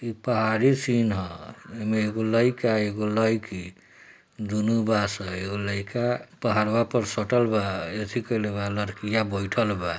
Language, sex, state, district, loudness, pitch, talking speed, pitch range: Bhojpuri, male, Bihar, East Champaran, -25 LUFS, 110 Hz, 55 wpm, 100-115 Hz